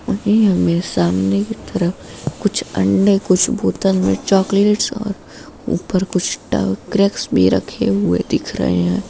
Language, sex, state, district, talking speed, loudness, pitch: Hindi, female, Uttar Pradesh, Budaun, 140 wpm, -17 LUFS, 135 Hz